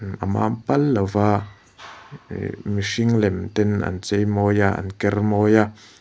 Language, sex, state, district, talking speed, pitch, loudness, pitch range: Mizo, male, Mizoram, Aizawl, 160 wpm, 105 Hz, -21 LUFS, 100-105 Hz